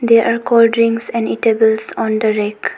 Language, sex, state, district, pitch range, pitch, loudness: English, female, Arunachal Pradesh, Longding, 220-230 Hz, 230 Hz, -14 LUFS